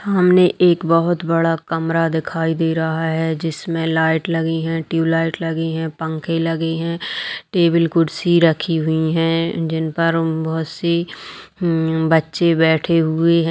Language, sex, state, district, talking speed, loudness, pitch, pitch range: Hindi, female, Bihar, Purnia, 145 wpm, -18 LUFS, 165 Hz, 160-165 Hz